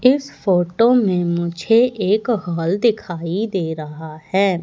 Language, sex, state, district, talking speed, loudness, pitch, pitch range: Hindi, female, Madhya Pradesh, Katni, 130 wpm, -18 LUFS, 185 Hz, 170-225 Hz